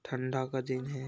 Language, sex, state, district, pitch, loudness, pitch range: Hindi, male, Chhattisgarh, Bastar, 130 Hz, -35 LUFS, 130-135 Hz